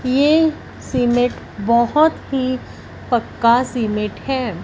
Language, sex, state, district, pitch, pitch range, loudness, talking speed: Hindi, female, Punjab, Fazilka, 250 Hz, 235-270 Hz, -18 LUFS, 90 wpm